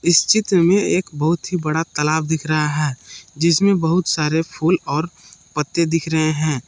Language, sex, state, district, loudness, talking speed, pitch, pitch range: Hindi, male, Jharkhand, Palamu, -18 LUFS, 180 wpm, 160 Hz, 150-170 Hz